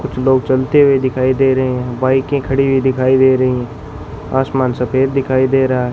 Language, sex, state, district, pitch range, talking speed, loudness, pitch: Hindi, male, Rajasthan, Bikaner, 130-135 Hz, 210 wpm, -14 LUFS, 130 Hz